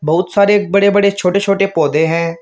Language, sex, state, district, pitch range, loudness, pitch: Hindi, male, Uttar Pradesh, Shamli, 165-200 Hz, -13 LUFS, 195 Hz